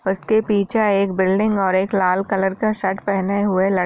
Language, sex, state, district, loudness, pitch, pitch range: Hindi, female, Bihar, Jamui, -19 LUFS, 195 Hz, 190-205 Hz